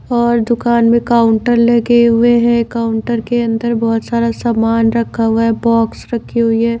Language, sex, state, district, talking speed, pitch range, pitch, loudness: Hindi, female, Bihar, Katihar, 175 wpm, 230-235 Hz, 235 Hz, -13 LUFS